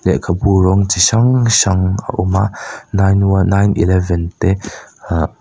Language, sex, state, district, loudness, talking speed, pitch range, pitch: Mizo, male, Mizoram, Aizawl, -14 LUFS, 155 wpm, 95-100 Hz, 95 Hz